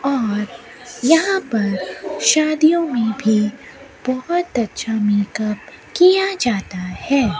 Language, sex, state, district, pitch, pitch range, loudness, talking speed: Hindi, female, Rajasthan, Bikaner, 235 Hz, 210-310 Hz, -18 LUFS, 95 wpm